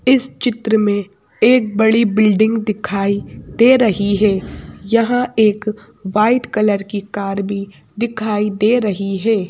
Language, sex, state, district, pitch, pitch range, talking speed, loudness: Hindi, female, Madhya Pradesh, Bhopal, 215 Hz, 200-230 Hz, 130 wpm, -16 LUFS